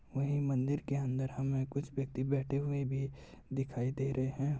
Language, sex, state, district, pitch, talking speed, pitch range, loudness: Hindi, male, Uttar Pradesh, Muzaffarnagar, 135 Hz, 170 wpm, 130-140 Hz, -36 LUFS